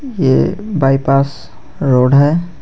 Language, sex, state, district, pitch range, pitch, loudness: Hindi, male, Jharkhand, Garhwa, 135-165 Hz, 140 Hz, -13 LUFS